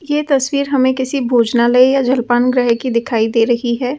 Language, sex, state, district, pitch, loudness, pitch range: Hindi, female, Delhi, New Delhi, 250 Hz, -14 LUFS, 235-265 Hz